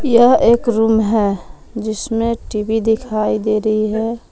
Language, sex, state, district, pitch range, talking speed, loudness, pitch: Hindi, female, Jharkhand, Palamu, 215-230 Hz, 140 wpm, -16 LUFS, 220 Hz